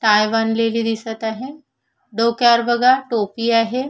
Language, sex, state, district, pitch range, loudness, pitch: Marathi, female, Maharashtra, Solapur, 225-240 Hz, -18 LUFS, 230 Hz